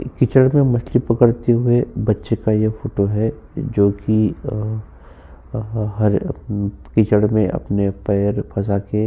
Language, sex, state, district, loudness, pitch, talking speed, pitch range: Hindi, male, Uttar Pradesh, Jyotiba Phule Nagar, -18 LUFS, 110 Hz, 160 wpm, 100-120 Hz